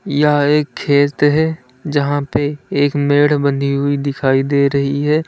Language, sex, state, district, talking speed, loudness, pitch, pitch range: Hindi, male, Uttar Pradesh, Lalitpur, 160 wpm, -15 LUFS, 145 Hz, 140-145 Hz